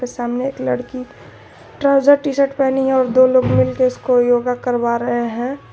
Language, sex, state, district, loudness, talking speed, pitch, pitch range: Hindi, female, Jharkhand, Garhwa, -16 LUFS, 180 wpm, 250 Hz, 240-265 Hz